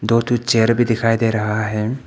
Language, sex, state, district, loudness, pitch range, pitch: Hindi, male, Arunachal Pradesh, Papum Pare, -17 LUFS, 110-115 Hz, 115 Hz